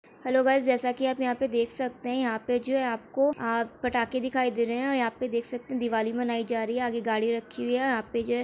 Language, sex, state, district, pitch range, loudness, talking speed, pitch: Hindi, female, Bihar, Saran, 235-255 Hz, -28 LUFS, 300 wpm, 245 Hz